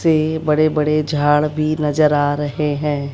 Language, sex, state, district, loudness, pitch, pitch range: Hindi, female, Bihar, West Champaran, -17 LUFS, 150 Hz, 145-155 Hz